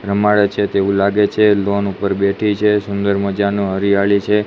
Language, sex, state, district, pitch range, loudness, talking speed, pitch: Gujarati, male, Gujarat, Gandhinagar, 100-105 Hz, -16 LUFS, 175 wpm, 100 Hz